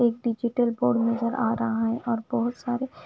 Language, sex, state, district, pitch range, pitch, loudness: Hindi, female, Punjab, Fazilka, 230-240 Hz, 235 Hz, -26 LUFS